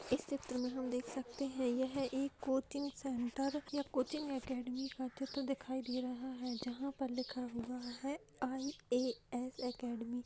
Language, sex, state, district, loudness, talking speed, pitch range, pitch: Hindi, female, Bihar, Gaya, -41 LUFS, 165 wpm, 250-270 Hz, 260 Hz